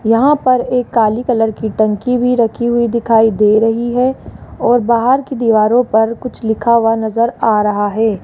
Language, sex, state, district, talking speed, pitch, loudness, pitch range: Hindi, female, Rajasthan, Jaipur, 190 wpm, 230 Hz, -13 LUFS, 220-245 Hz